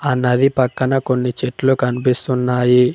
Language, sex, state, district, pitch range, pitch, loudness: Telugu, male, Telangana, Mahabubabad, 125-130 Hz, 125 Hz, -17 LUFS